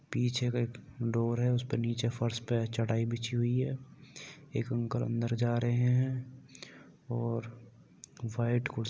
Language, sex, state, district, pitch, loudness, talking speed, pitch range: Hindi, male, Uttar Pradesh, Jalaun, 120 Hz, -33 LUFS, 160 wpm, 115-125 Hz